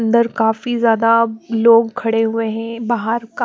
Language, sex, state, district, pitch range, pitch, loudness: Hindi, female, Chandigarh, Chandigarh, 225-235 Hz, 230 Hz, -16 LUFS